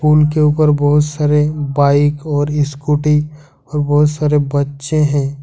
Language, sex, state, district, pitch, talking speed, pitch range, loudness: Hindi, male, Jharkhand, Ranchi, 150 Hz, 130 wpm, 145-150 Hz, -14 LUFS